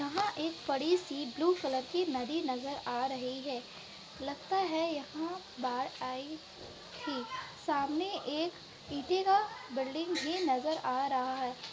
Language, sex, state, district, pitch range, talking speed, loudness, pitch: Hindi, female, Bihar, Kishanganj, 260-345 Hz, 140 wpm, -35 LUFS, 290 Hz